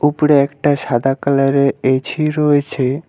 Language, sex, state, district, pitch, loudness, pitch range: Bengali, male, West Bengal, Alipurduar, 140 Hz, -15 LUFS, 135-150 Hz